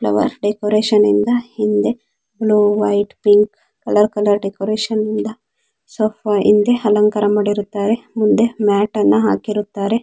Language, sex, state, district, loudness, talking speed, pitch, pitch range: Kannada, female, Karnataka, Dakshina Kannada, -16 LUFS, 115 wpm, 210 Hz, 205-215 Hz